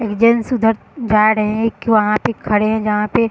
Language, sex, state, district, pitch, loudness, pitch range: Hindi, female, Bihar, Sitamarhi, 220 Hz, -16 LUFS, 210-230 Hz